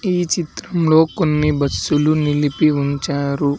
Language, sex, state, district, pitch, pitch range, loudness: Telugu, male, Andhra Pradesh, Sri Satya Sai, 150 Hz, 140-160 Hz, -17 LUFS